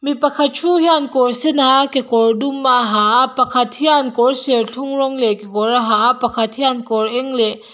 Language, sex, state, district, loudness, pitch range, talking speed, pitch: Mizo, female, Mizoram, Aizawl, -15 LUFS, 235-275 Hz, 225 wpm, 255 Hz